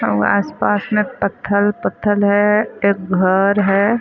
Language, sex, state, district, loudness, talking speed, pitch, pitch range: Chhattisgarhi, female, Chhattisgarh, Sarguja, -16 LUFS, 120 wpm, 200 Hz, 195-210 Hz